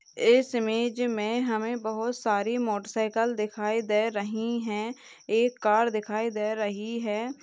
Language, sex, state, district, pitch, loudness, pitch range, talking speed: Hindi, female, Bihar, Madhepura, 220 Hz, -27 LUFS, 215-235 Hz, 145 wpm